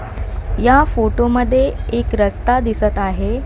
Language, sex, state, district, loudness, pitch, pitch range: Marathi, female, Maharashtra, Mumbai Suburban, -16 LUFS, 225 Hz, 195-245 Hz